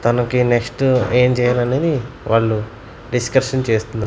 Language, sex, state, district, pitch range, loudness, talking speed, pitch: Telugu, male, Andhra Pradesh, Manyam, 115-125 Hz, -17 LUFS, 105 wpm, 120 Hz